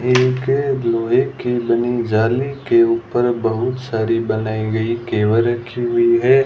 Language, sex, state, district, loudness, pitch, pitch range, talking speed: Hindi, male, Rajasthan, Bikaner, -18 LUFS, 120 Hz, 115-125 Hz, 140 wpm